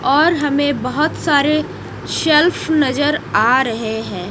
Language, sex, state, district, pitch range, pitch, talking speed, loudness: Hindi, female, Odisha, Nuapada, 260-305 Hz, 290 Hz, 125 wpm, -16 LUFS